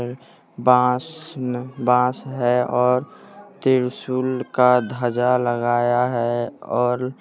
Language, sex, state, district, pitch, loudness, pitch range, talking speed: Hindi, male, Jharkhand, Deoghar, 125 Hz, -20 LUFS, 125-130 Hz, 100 wpm